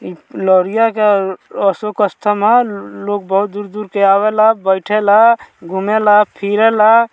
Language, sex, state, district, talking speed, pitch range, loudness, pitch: Bhojpuri, male, Bihar, Muzaffarpur, 110 wpm, 195-215 Hz, -13 LUFS, 205 Hz